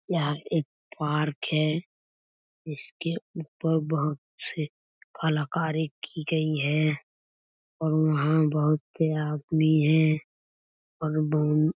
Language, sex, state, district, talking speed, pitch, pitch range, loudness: Hindi, male, Chhattisgarh, Raigarh, 100 wpm, 155 Hz, 150-160 Hz, -27 LUFS